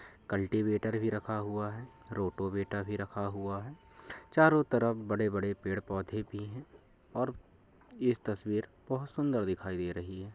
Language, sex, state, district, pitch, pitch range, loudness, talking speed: Hindi, male, Uttar Pradesh, Varanasi, 105 Hz, 95-115 Hz, -34 LUFS, 150 wpm